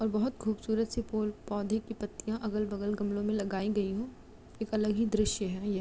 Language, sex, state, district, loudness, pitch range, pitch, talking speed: Hindi, female, Uttar Pradesh, Jalaun, -33 LUFS, 205-220 Hz, 215 Hz, 225 wpm